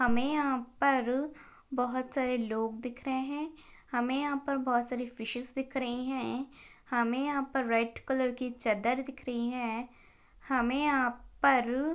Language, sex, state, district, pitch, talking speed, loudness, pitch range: Hindi, female, Maharashtra, Pune, 255 Hz, 155 wpm, -32 LUFS, 245-270 Hz